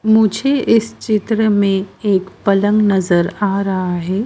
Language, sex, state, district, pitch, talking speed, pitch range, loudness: Hindi, female, Madhya Pradesh, Dhar, 200 Hz, 140 wpm, 190-220 Hz, -16 LUFS